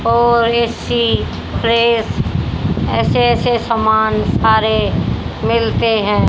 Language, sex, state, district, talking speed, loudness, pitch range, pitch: Hindi, female, Haryana, Jhajjar, 85 wpm, -15 LUFS, 205-235 Hz, 220 Hz